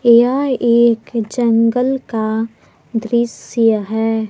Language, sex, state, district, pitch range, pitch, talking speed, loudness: Hindi, female, Jharkhand, Palamu, 225-240 Hz, 230 Hz, 85 wpm, -16 LUFS